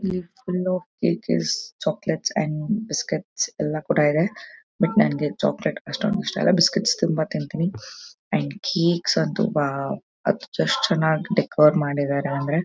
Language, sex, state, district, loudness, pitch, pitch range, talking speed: Kannada, female, Karnataka, Mysore, -23 LUFS, 170 Hz, 150-200 Hz, 140 wpm